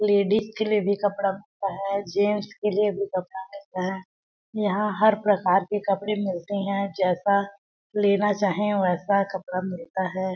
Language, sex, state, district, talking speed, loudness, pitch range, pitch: Hindi, female, Chhattisgarh, Balrampur, 160 wpm, -25 LUFS, 190-205 Hz, 200 Hz